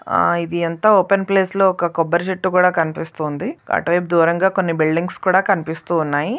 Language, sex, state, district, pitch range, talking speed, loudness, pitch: Telugu, female, Andhra Pradesh, Visakhapatnam, 165-190 Hz, 180 wpm, -18 LUFS, 175 Hz